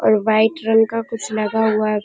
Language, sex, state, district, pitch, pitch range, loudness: Hindi, female, Bihar, Kishanganj, 220 Hz, 215-225 Hz, -18 LUFS